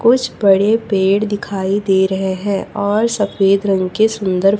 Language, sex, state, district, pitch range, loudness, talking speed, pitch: Hindi, female, Chhattisgarh, Raipur, 195-210 Hz, -15 LUFS, 155 wpm, 200 Hz